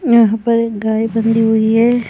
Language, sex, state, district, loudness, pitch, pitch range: Hindi, male, Uttarakhand, Tehri Garhwal, -14 LUFS, 225 Hz, 220-230 Hz